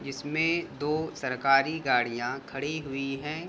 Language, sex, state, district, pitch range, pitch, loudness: Hindi, male, Uttar Pradesh, Jalaun, 135-155 Hz, 140 Hz, -28 LUFS